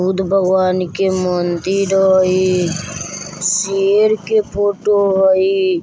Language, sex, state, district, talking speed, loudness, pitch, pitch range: Bajjika, male, Bihar, Vaishali, 90 wpm, -15 LUFS, 190 Hz, 185-200 Hz